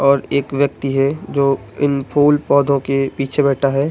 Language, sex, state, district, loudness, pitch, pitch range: Hindi, male, Uttar Pradesh, Budaun, -17 LUFS, 140 Hz, 135-140 Hz